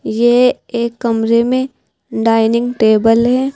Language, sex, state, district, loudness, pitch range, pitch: Hindi, female, Uttar Pradesh, Saharanpur, -13 LUFS, 225-250 Hz, 235 Hz